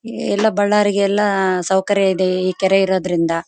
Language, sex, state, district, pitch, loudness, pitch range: Kannada, female, Karnataka, Bellary, 190 Hz, -17 LUFS, 185-205 Hz